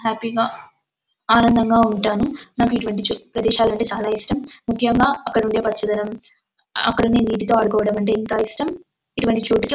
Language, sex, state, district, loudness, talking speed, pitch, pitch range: Telugu, female, Andhra Pradesh, Anantapur, -19 LUFS, 140 wpm, 225 Hz, 220-235 Hz